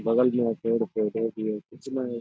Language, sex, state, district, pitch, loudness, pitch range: Hindi, male, Bihar, Jamui, 115 Hz, -27 LUFS, 110-125 Hz